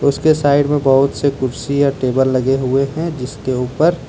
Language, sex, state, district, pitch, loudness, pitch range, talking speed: Hindi, male, Jharkhand, Deoghar, 135 Hz, -16 LUFS, 130-145 Hz, 175 wpm